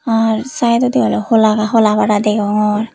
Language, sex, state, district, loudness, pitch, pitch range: Chakma, female, Tripura, West Tripura, -14 LUFS, 220 Hz, 210-230 Hz